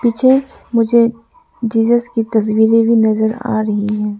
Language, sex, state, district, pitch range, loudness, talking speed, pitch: Hindi, female, Arunachal Pradesh, Lower Dibang Valley, 220-235 Hz, -14 LUFS, 145 wpm, 230 Hz